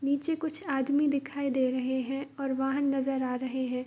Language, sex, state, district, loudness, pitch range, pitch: Hindi, female, Bihar, East Champaran, -30 LUFS, 260-280 Hz, 270 Hz